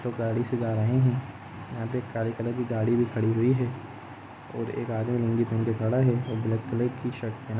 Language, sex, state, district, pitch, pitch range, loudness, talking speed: Hindi, male, Jharkhand, Jamtara, 115 Hz, 115-125 Hz, -27 LUFS, 230 wpm